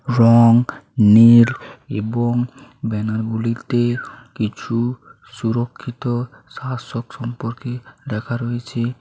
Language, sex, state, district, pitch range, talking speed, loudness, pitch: Bengali, male, West Bengal, Paschim Medinipur, 115-125 Hz, 75 wpm, -19 LUFS, 120 Hz